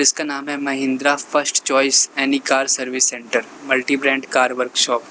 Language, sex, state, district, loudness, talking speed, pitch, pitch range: Hindi, male, Uttar Pradesh, Lalitpur, -18 LUFS, 175 wpm, 135 Hz, 130-140 Hz